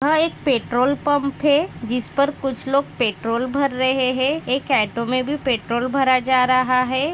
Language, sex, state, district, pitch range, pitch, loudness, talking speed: Hindi, female, Maharashtra, Nagpur, 250-280 Hz, 260 Hz, -20 LUFS, 175 wpm